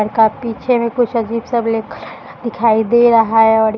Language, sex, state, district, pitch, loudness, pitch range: Hindi, female, Uttar Pradesh, Budaun, 230 Hz, -14 LUFS, 220-235 Hz